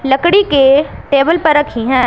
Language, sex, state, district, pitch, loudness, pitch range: Hindi, female, Punjab, Pathankot, 280 Hz, -11 LUFS, 270-310 Hz